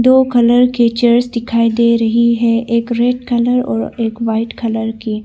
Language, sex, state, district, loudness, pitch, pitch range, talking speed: Hindi, female, Arunachal Pradesh, Longding, -14 LUFS, 235 Hz, 230-240 Hz, 185 wpm